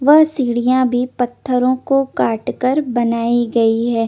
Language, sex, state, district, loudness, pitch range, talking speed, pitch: Hindi, female, Chandigarh, Chandigarh, -16 LUFS, 235-260 Hz, 160 wpm, 250 Hz